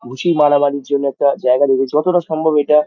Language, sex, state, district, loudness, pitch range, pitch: Bengali, male, West Bengal, Dakshin Dinajpur, -15 LUFS, 140-150 Hz, 145 Hz